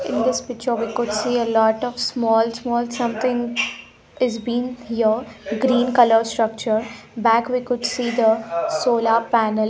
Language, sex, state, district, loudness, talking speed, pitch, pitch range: English, female, Punjab, Pathankot, -20 LUFS, 155 wpm, 235 Hz, 225-245 Hz